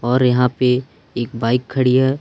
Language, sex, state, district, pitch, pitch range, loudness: Hindi, male, Madhya Pradesh, Umaria, 125 Hz, 125-130 Hz, -17 LUFS